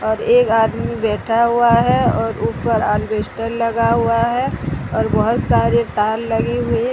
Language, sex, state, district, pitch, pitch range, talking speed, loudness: Hindi, female, Odisha, Sambalpur, 225 Hz, 210-235 Hz, 165 wpm, -17 LUFS